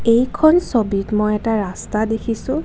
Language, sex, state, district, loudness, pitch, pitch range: Assamese, female, Assam, Kamrup Metropolitan, -18 LUFS, 225 Hz, 210-255 Hz